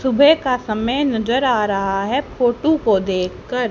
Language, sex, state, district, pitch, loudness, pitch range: Hindi, female, Haryana, Charkhi Dadri, 245 Hz, -18 LUFS, 210-265 Hz